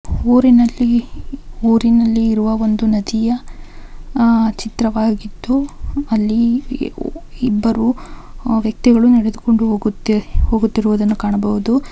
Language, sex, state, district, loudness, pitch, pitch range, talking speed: Kannada, female, Karnataka, Mysore, -16 LUFS, 225 Hz, 220-240 Hz, 65 wpm